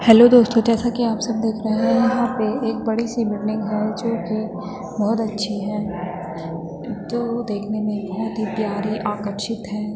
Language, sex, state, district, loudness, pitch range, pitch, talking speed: Hindi, female, Uttarakhand, Tehri Garhwal, -21 LUFS, 210-230 Hz, 215 Hz, 175 wpm